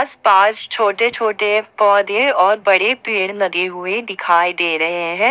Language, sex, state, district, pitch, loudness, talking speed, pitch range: Hindi, female, Jharkhand, Ranchi, 200 Hz, -15 LUFS, 160 wpm, 180-215 Hz